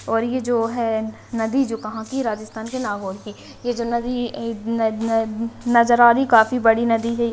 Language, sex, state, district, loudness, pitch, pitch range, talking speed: Hindi, female, Rajasthan, Nagaur, -20 LUFS, 230 Hz, 220-240 Hz, 170 wpm